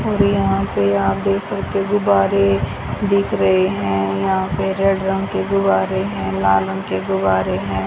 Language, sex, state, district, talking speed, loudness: Hindi, female, Haryana, Jhajjar, 170 wpm, -18 LUFS